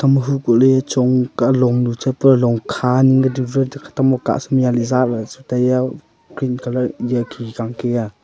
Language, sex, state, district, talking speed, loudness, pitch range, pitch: Wancho, male, Arunachal Pradesh, Longding, 210 wpm, -17 LUFS, 120-130 Hz, 125 Hz